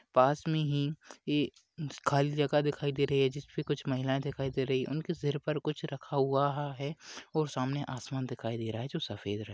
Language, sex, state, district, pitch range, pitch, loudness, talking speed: Hindi, male, Maharashtra, Pune, 130-150 Hz, 140 Hz, -33 LUFS, 220 wpm